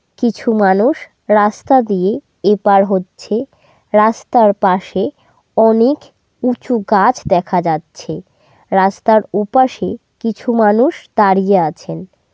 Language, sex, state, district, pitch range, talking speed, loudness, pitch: Bengali, female, West Bengal, North 24 Parganas, 195-235 Hz, 90 wpm, -14 LUFS, 210 Hz